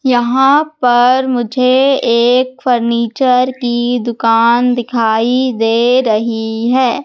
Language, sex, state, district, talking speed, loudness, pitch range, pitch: Hindi, female, Madhya Pradesh, Katni, 95 wpm, -12 LUFS, 235-255 Hz, 245 Hz